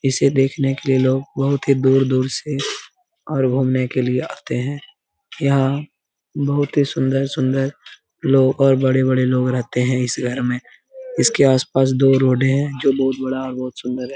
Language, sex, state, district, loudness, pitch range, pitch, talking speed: Hindi, male, Bihar, Lakhisarai, -18 LUFS, 130-140 Hz, 135 Hz, 175 wpm